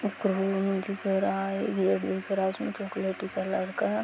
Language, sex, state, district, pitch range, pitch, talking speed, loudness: Hindi, female, Jharkhand, Sahebganj, 190-195 Hz, 195 Hz, 75 wpm, -29 LUFS